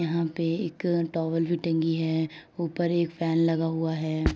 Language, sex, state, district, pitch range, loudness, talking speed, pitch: Hindi, female, Uttar Pradesh, Etah, 160-170 Hz, -27 LUFS, 180 wpm, 165 Hz